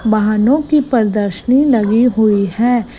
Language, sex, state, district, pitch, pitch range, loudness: Hindi, female, Gujarat, Gandhinagar, 225 Hz, 210-250 Hz, -13 LUFS